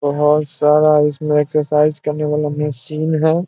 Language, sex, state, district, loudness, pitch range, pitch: Hindi, male, Bihar, Samastipur, -16 LUFS, 150-155 Hz, 150 Hz